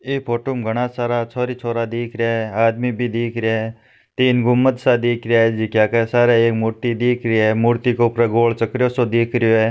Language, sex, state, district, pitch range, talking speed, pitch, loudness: Marwari, male, Rajasthan, Nagaur, 115-120 Hz, 235 wpm, 115 Hz, -18 LUFS